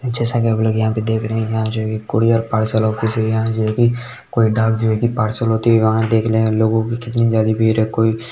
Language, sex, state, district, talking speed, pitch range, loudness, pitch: Hindi, male, Bihar, Begusarai, 260 wpm, 110-115 Hz, -17 LUFS, 110 Hz